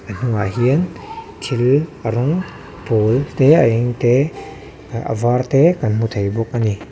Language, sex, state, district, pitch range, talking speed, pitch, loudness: Mizo, male, Mizoram, Aizawl, 115-145 Hz, 165 wpm, 120 Hz, -17 LUFS